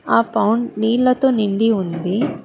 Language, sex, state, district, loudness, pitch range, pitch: Telugu, female, Telangana, Hyderabad, -18 LUFS, 210-245 Hz, 225 Hz